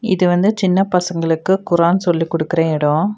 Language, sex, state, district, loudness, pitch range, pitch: Tamil, female, Tamil Nadu, Nilgiris, -16 LUFS, 165-190 Hz, 175 Hz